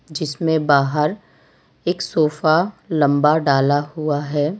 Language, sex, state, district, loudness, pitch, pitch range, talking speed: Hindi, female, Gujarat, Valsad, -19 LUFS, 150 Hz, 145-160 Hz, 105 wpm